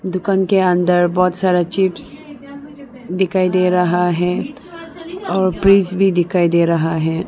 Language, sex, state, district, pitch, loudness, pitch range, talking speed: Hindi, female, Arunachal Pradesh, Lower Dibang Valley, 185 Hz, -16 LUFS, 180-245 Hz, 140 wpm